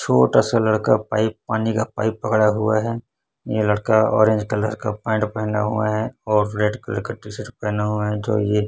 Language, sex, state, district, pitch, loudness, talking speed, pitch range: Hindi, male, Chhattisgarh, Raipur, 110 Hz, -20 LUFS, 205 wpm, 105-110 Hz